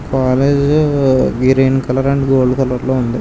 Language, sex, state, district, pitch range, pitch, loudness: Telugu, male, Andhra Pradesh, Srikakulam, 130-140 Hz, 130 Hz, -14 LUFS